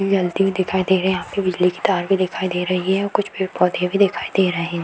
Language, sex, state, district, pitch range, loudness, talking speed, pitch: Hindi, female, Bihar, Darbhanga, 180-195 Hz, -19 LUFS, 295 wpm, 185 Hz